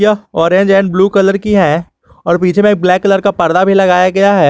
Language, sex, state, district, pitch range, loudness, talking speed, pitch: Hindi, male, Jharkhand, Garhwa, 180-200 Hz, -10 LUFS, 240 wpm, 195 Hz